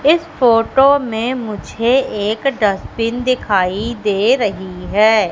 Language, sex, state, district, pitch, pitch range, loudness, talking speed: Hindi, female, Madhya Pradesh, Katni, 225 Hz, 205-255 Hz, -16 LUFS, 115 wpm